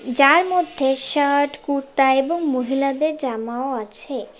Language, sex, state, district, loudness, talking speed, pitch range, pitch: Bengali, female, West Bengal, Cooch Behar, -20 LUFS, 110 wpm, 265-290 Hz, 275 Hz